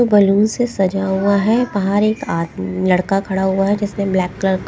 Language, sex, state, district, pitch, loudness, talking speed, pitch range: Hindi, female, Punjab, Kapurthala, 195 Hz, -17 LUFS, 215 wpm, 190-205 Hz